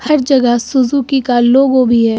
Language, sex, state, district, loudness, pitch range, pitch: Hindi, female, Uttar Pradesh, Lucknow, -12 LUFS, 240-270 Hz, 255 Hz